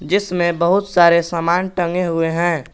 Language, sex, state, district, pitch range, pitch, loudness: Hindi, male, Jharkhand, Garhwa, 170-180 Hz, 175 Hz, -17 LUFS